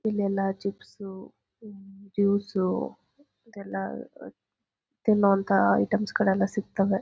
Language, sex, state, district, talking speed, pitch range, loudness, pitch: Kannada, female, Karnataka, Chamarajanagar, 95 wpm, 195-210 Hz, -26 LUFS, 200 Hz